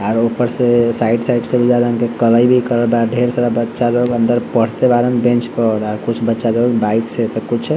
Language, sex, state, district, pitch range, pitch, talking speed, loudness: Bhojpuri, male, Bihar, Saran, 115-120 Hz, 120 Hz, 240 wpm, -15 LUFS